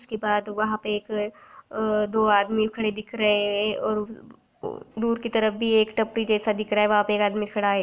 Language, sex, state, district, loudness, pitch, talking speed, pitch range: Hindi, female, Chhattisgarh, Raigarh, -24 LUFS, 215 Hz, 215 wpm, 210-220 Hz